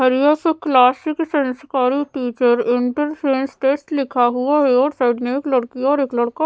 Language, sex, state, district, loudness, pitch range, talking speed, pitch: Hindi, female, Odisha, Sambalpur, -18 LUFS, 250-290 Hz, 160 wpm, 265 Hz